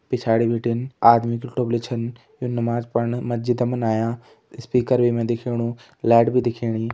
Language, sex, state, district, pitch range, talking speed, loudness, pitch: Hindi, male, Uttarakhand, Tehri Garhwal, 115-125 Hz, 165 wpm, -21 LUFS, 120 Hz